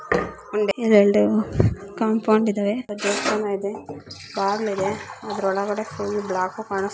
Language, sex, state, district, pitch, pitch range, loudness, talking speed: Kannada, female, Karnataka, Dakshina Kannada, 205 Hz, 195-210 Hz, -22 LUFS, 120 wpm